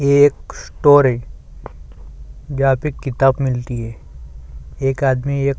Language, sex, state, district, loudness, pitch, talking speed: Hindi, male, Chhattisgarh, Sukma, -17 LUFS, 130 Hz, 130 wpm